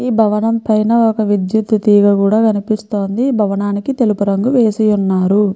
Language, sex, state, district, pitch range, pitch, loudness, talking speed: Telugu, female, Andhra Pradesh, Chittoor, 205-225 Hz, 215 Hz, -14 LUFS, 130 wpm